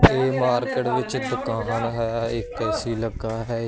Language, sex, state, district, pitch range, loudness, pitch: Punjabi, male, Punjab, Kapurthala, 115-120 Hz, -24 LUFS, 115 Hz